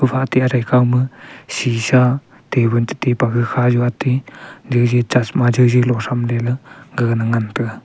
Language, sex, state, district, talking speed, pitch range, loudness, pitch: Wancho, male, Arunachal Pradesh, Longding, 135 wpm, 120-125 Hz, -17 LUFS, 125 Hz